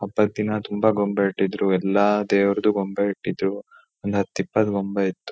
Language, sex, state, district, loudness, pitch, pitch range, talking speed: Kannada, male, Karnataka, Shimoga, -22 LUFS, 100 Hz, 100-105 Hz, 145 wpm